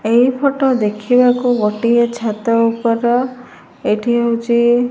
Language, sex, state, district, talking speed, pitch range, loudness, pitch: Odia, female, Odisha, Malkangiri, 110 wpm, 230-245 Hz, -15 LUFS, 235 Hz